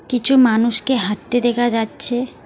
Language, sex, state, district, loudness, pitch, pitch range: Bengali, female, West Bengal, Alipurduar, -16 LUFS, 240 Hz, 225-250 Hz